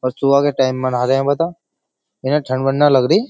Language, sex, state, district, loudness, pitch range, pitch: Hindi, male, Uttar Pradesh, Jyotiba Phule Nagar, -16 LUFS, 130-145 Hz, 135 Hz